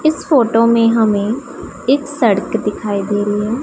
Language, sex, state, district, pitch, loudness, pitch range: Hindi, female, Punjab, Pathankot, 230 Hz, -15 LUFS, 210-275 Hz